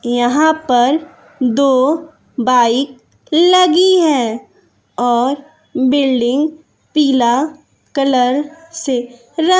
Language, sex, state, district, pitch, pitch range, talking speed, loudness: Hindi, female, Bihar, West Champaran, 275 Hz, 245-315 Hz, 75 wpm, -14 LUFS